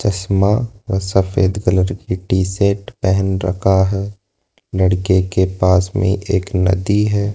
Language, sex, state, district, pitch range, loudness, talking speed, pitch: Hindi, male, Rajasthan, Jaipur, 95-100 Hz, -17 LUFS, 140 wpm, 95 Hz